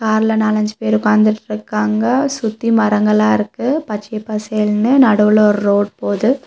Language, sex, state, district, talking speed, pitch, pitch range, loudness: Tamil, female, Tamil Nadu, Nilgiris, 120 wpm, 215 Hz, 210-225 Hz, -15 LUFS